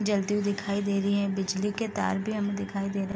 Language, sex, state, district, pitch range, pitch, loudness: Hindi, female, Bihar, East Champaran, 195-205 Hz, 200 Hz, -29 LUFS